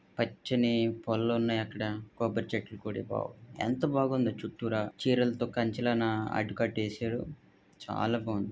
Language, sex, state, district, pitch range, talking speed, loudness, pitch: Telugu, male, Andhra Pradesh, Visakhapatnam, 110-120 Hz, 90 wpm, -32 LUFS, 115 Hz